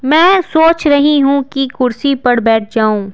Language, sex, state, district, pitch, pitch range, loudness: Hindi, female, Bihar, Patna, 275 Hz, 240-300 Hz, -12 LUFS